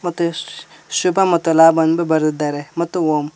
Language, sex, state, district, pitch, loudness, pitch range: Kannada, male, Karnataka, Koppal, 165 Hz, -16 LUFS, 155-170 Hz